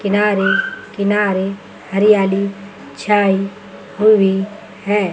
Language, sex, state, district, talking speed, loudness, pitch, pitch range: Hindi, female, Chandigarh, Chandigarh, 70 wpm, -16 LUFS, 200 Hz, 195-210 Hz